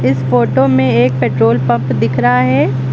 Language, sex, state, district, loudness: Hindi, female, Uttar Pradesh, Lucknow, -12 LUFS